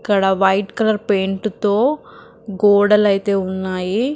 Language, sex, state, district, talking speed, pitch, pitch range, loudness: Telugu, female, Telangana, Karimnagar, 115 wpm, 200 Hz, 195-210 Hz, -17 LUFS